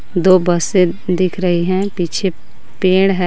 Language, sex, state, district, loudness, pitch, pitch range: Hindi, female, Jharkhand, Garhwa, -15 LUFS, 185 Hz, 180-190 Hz